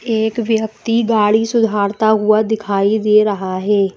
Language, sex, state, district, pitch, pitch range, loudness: Hindi, female, Madhya Pradesh, Bhopal, 215 Hz, 205-225 Hz, -15 LUFS